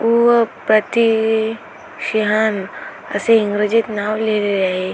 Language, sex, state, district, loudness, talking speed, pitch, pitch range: Marathi, female, Maharashtra, Aurangabad, -17 LUFS, 95 wpm, 215 Hz, 205-225 Hz